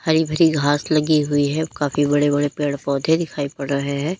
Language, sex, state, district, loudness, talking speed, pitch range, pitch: Hindi, female, Uttar Pradesh, Lalitpur, -20 LUFS, 215 wpm, 145-155 Hz, 145 Hz